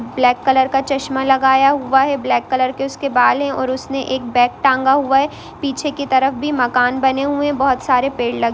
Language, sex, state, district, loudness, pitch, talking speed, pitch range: Hindi, female, Bihar, East Champaran, -16 LUFS, 265 Hz, 215 wpm, 255-275 Hz